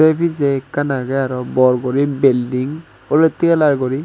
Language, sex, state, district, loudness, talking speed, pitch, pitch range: Chakma, male, Tripura, Unakoti, -16 LUFS, 165 wpm, 140 Hz, 130-155 Hz